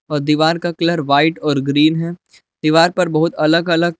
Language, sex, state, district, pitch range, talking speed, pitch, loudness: Hindi, male, Jharkhand, Palamu, 155-170 Hz, 195 wpm, 160 Hz, -15 LUFS